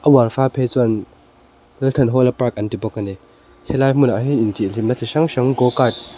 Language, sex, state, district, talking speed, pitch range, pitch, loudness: Mizo, male, Mizoram, Aizawl, 215 wpm, 110-135 Hz, 125 Hz, -18 LUFS